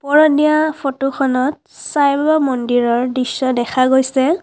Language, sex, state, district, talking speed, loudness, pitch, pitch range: Assamese, female, Assam, Kamrup Metropolitan, 120 wpm, -16 LUFS, 270 Hz, 255-300 Hz